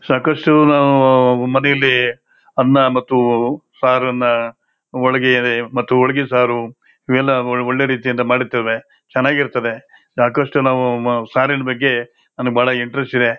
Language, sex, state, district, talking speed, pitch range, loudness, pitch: Kannada, male, Karnataka, Shimoga, 120 wpm, 120-135 Hz, -16 LUFS, 125 Hz